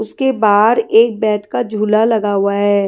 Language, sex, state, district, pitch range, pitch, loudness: Hindi, female, Himachal Pradesh, Shimla, 205-225 Hz, 215 Hz, -14 LUFS